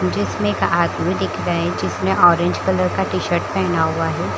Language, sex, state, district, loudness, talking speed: Hindi, female, Chhattisgarh, Bilaspur, -18 LUFS, 190 wpm